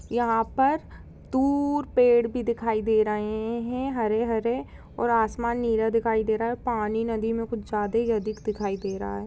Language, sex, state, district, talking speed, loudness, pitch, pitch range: Hindi, female, Uttar Pradesh, Budaun, 190 wpm, -26 LUFS, 230 Hz, 220-240 Hz